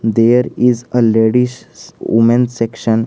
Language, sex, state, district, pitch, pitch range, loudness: English, male, Jharkhand, Garhwa, 115 Hz, 115-125 Hz, -13 LUFS